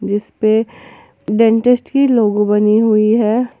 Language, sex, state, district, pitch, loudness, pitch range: Hindi, female, Jharkhand, Ranchi, 220 Hz, -14 LUFS, 210-240 Hz